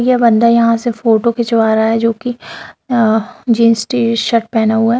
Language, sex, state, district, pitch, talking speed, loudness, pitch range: Hindi, female, Bihar, Darbhanga, 230 Hz, 170 wpm, -13 LUFS, 225-235 Hz